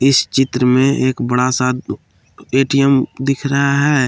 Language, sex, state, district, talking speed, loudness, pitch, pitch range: Hindi, male, Jharkhand, Palamu, 145 wpm, -15 LUFS, 135 Hz, 125-140 Hz